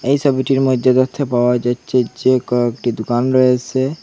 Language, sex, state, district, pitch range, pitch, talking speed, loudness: Bengali, male, Assam, Hailakandi, 120-130 Hz, 130 Hz, 150 wpm, -16 LUFS